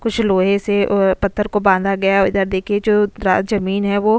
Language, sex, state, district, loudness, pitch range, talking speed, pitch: Hindi, female, Goa, North and South Goa, -16 LUFS, 195-210 Hz, 245 wpm, 200 Hz